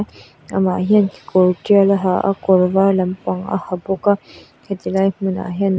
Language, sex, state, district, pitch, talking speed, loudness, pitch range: Mizo, female, Mizoram, Aizawl, 190 Hz, 195 wpm, -17 LUFS, 185-195 Hz